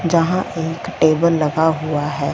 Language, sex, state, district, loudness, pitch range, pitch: Hindi, female, Punjab, Fazilka, -18 LUFS, 155-170 Hz, 160 Hz